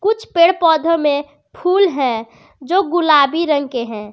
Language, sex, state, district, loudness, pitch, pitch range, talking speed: Hindi, female, Jharkhand, Garhwa, -15 LUFS, 320 Hz, 280-355 Hz, 160 wpm